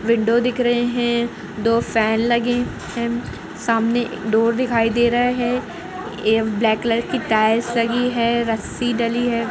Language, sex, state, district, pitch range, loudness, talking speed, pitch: Hindi, female, Chhattisgarh, Kabirdham, 225-240 Hz, -19 LUFS, 150 wpm, 235 Hz